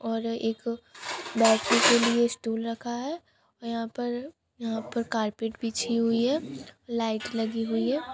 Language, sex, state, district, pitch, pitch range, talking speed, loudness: Hindi, female, Bihar, Sitamarhi, 230 Hz, 225-240 Hz, 155 wpm, -27 LUFS